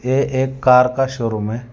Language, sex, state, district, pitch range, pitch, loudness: Hindi, male, Telangana, Hyderabad, 120-130 Hz, 125 Hz, -17 LUFS